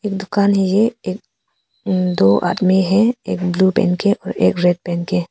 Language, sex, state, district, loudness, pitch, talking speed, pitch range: Hindi, female, Arunachal Pradesh, Papum Pare, -17 LUFS, 185 Hz, 205 wpm, 180-200 Hz